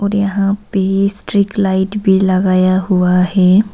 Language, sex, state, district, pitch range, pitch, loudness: Hindi, female, Arunachal Pradesh, Papum Pare, 185-200 Hz, 195 Hz, -13 LUFS